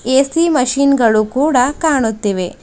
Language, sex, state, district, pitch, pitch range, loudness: Kannada, female, Karnataka, Bidar, 260 Hz, 225-280 Hz, -14 LUFS